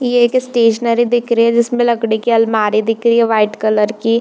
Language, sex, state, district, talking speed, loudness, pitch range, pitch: Hindi, female, Bihar, Darbhanga, 230 wpm, -14 LUFS, 220-240 Hz, 230 Hz